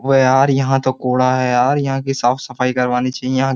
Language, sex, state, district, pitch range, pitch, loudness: Hindi, male, Uttar Pradesh, Jyotiba Phule Nagar, 125-135 Hz, 130 Hz, -16 LUFS